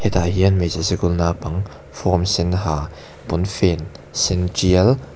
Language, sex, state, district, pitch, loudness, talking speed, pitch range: Mizo, male, Mizoram, Aizawl, 90 Hz, -19 LUFS, 130 wpm, 80-95 Hz